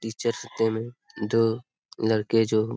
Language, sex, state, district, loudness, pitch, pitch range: Hindi, male, Jharkhand, Sahebganj, -26 LUFS, 110 Hz, 110-115 Hz